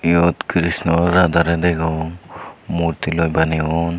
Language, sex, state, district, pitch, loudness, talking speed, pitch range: Chakma, male, Tripura, Unakoti, 85 Hz, -18 LUFS, 120 wpm, 80-85 Hz